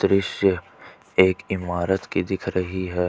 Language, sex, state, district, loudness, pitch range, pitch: Hindi, male, Jharkhand, Ranchi, -23 LUFS, 90-95 Hz, 95 Hz